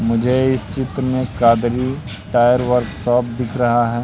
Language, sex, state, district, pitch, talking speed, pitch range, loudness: Hindi, male, Madhya Pradesh, Katni, 120 Hz, 150 wpm, 115-130 Hz, -17 LUFS